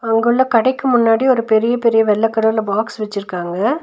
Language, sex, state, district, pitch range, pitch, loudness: Tamil, female, Tamil Nadu, Nilgiris, 220-240 Hz, 225 Hz, -16 LUFS